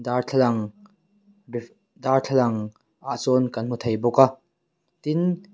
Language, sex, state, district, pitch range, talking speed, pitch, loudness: Mizo, male, Mizoram, Aizawl, 120-175 Hz, 120 wpm, 130 Hz, -23 LUFS